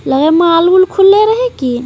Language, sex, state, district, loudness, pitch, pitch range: Hindi, female, Bihar, Jamui, -9 LUFS, 355 Hz, 305-405 Hz